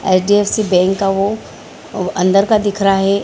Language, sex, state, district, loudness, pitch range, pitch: Hindi, female, Bihar, Lakhisarai, -14 LUFS, 195-205 Hz, 195 Hz